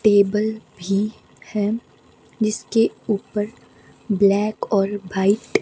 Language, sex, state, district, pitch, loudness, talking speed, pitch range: Hindi, female, Himachal Pradesh, Shimla, 210 Hz, -21 LUFS, 95 wpm, 200-215 Hz